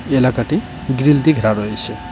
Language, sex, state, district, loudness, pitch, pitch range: Bengali, male, West Bengal, Cooch Behar, -16 LUFS, 125 Hz, 110-140 Hz